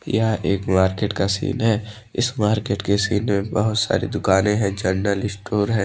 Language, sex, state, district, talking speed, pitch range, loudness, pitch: Hindi, male, Odisha, Malkangiri, 185 wpm, 100-110 Hz, -21 LUFS, 105 Hz